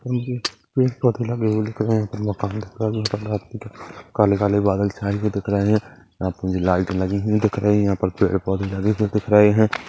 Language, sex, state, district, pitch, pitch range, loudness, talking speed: Hindi, male, Chhattisgarh, Kabirdham, 105 Hz, 100-110 Hz, -21 LUFS, 190 wpm